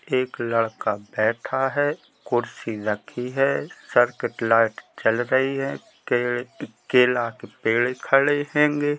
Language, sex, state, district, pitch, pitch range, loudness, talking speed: Hindi, male, Jharkhand, Jamtara, 120 Hz, 115-135 Hz, -23 LUFS, 120 wpm